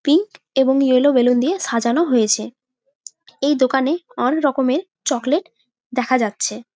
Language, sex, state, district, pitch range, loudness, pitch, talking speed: Bengali, female, West Bengal, Malda, 245-290 Hz, -18 LUFS, 265 Hz, 135 wpm